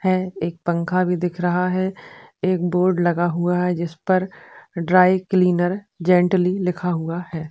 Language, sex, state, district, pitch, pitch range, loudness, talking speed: Hindi, female, Uttar Pradesh, Jalaun, 180 Hz, 175-185 Hz, -20 LUFS, 160 wpm